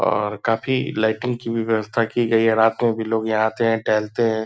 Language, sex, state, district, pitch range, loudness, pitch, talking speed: Hindi, male, Bihar, Purnia, 110-115 Hz, -20 LUFS, 115 Hz, 240 wpm